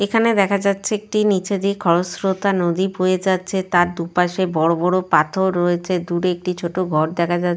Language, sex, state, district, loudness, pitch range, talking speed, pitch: Bengali, female, West Bengal, Jalpaiguri, -19 LUFS, 175-195 Hz, 180 wpm, 185 Hz